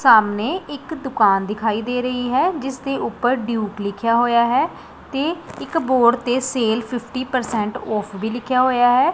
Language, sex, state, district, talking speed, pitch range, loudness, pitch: Punjabi, female, Punjab, Pathankot, 170 wpm, 220-260 Hz, -20 LUFS, 245 Hz